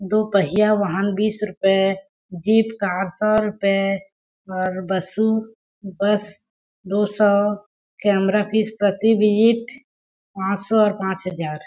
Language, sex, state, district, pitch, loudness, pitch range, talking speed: Hindi, female, Chhattisgarh, Balrampur, 205 Hz, -20 LUFS, 195-215 Hz, 125 wpm